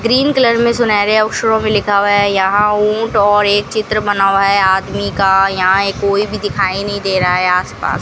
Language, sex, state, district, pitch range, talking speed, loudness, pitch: Hindi, female, Rajasthan, Bikaner, 195-215 Hz, 210 wpm, -13 LUFS, 205 Hz